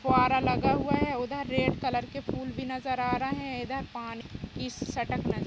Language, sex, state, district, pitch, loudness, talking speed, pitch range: Hindi, female, Uttar Pradesh, Jalaun, 260 Hz, -30 LUFS, 240 wpm, 250-265 Hz